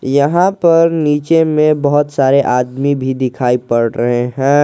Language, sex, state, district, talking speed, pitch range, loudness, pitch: Hindi, male, Jharkhand, Garhwa, 155 wpm, 125-150 Hz, -13 LUFS, 140 Hz